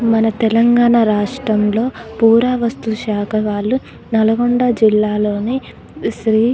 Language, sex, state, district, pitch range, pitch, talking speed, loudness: Telugu, female, Telangana, Nalgonda, 215-240 Hz, 225 Hz, 90 wpm, -15 LUFS